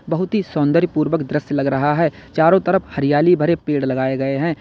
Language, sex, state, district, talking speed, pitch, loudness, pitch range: Hindi, male, Uttar Pradesh, Lalitpur, 210 wpm, 150 Hz, -18 LUFS, 140-170 Hz